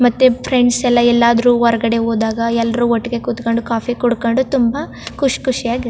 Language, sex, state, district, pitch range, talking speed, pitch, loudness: Kannada, female, Karnataka, Chamarajanagar, 230-245 Hz, 165 wpm, 240 Hz, -15 LUFS